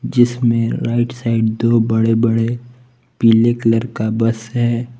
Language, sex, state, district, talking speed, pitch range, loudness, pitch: Hindi, male, Jharkhand, Palamu, 130 wpm, 115-120 Hz, -16 LUFS, 115 Hz